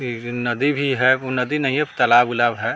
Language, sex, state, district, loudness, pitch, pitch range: Hindi, male, Bihar, Vaishali, -19 LUFS, 125 Hz, 120-135 Hz